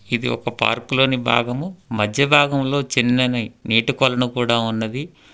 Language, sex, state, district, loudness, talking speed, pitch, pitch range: Telugu, male, Telangana, Hyderabad, -19 LUFS, 125 wpm, 125 Hz, 115-140 Hz